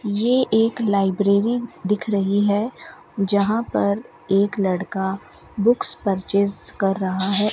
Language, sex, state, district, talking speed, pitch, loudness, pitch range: Hindi, female, Rajasthan, Bikaner, 120 wpm, 200 Hz, -20 LUFS, 195-215 Hz